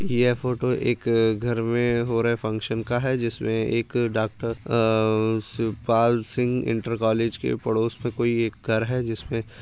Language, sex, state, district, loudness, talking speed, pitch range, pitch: Hindi, male, Uttar Pradesh, Muzaffarnagar, -24 LUFS, 170 wpm, 110-120 Hz, 115 Hz